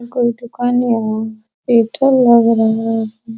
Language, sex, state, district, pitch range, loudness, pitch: Hindi, female, Uttar Pradesh, Deoria, 220-245 Hz, -15 LUFS, 230 Hz